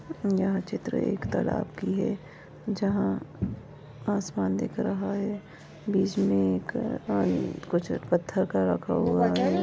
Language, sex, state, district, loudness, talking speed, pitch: Hindi, female, Chhattisgarh, Bastar, -28 LUFS, 130 wpm, 155 Hz